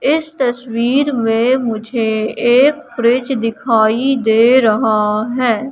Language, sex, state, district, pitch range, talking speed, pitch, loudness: Hindi, female, Madhya Pradesh, Katni, 225-260 Hz, 105 wpm, 240 Hz, -14 LUFS